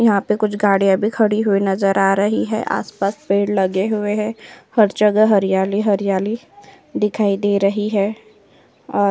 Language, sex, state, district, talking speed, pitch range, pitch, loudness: Hindi, female, Uttar Pradesh, Jyotiba Phule Nagar, 170 wpm, 195-215 Hz, 205 Hz, -18 LUFS